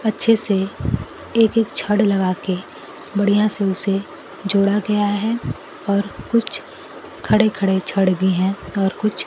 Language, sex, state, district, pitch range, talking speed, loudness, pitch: Hindi, female, Bihar, Kaimur, 195-215 Hz, 135 wpm, -19 LUFS, 200 Hz